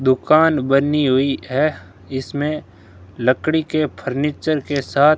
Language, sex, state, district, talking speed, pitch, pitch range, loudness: Hindi, male, Rajasthan, Bikaner, 125 wpm, 140 Hz, 130-155 Hz, -19 LUFS